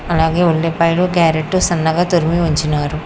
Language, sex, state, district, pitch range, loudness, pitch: Telugu, female, Telangana, Hyderabad, 160-175 Hz, -15 LUFS, 165 Hz